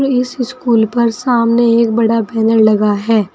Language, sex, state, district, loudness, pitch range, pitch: Hindi, female, Uttar Pradesh, Saharanpur, -13 LUFS, 225-240 Hz, 230 Hz